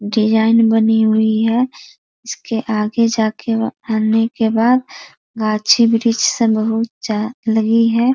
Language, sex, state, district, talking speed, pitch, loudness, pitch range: Hindi, female, Bihar, East Champaran, 130 wpm, 225 Hz, -15 LUFS, 220-230 Hz